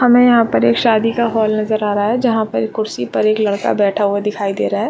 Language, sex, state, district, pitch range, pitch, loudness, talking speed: Hindi, female, Chhattisgarh, Bastar, 200-225 Hz, 215 Hz, -15 LUFS, 280 wpm